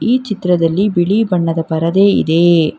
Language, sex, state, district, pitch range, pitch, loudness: Kannada, female, Karnataka, Bangalore, 165-200 Hz, 180 Hz, -13 LUFS